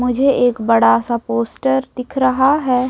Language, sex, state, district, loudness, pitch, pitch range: Hindi, female, Chhattisgarh, Raipur, -16 LUFS, 245 Hz, 230-260 Hz